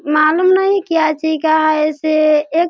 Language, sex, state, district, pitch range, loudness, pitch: Hindi, female, Bihar, Sitamarhi, 310-335 Hz, -14 LUFS, 315 Hz